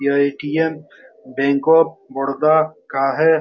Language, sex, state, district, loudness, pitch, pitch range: Hindi, male, Bihar, Saran, -18 LUFS, 145 Hz, 135-160 Hz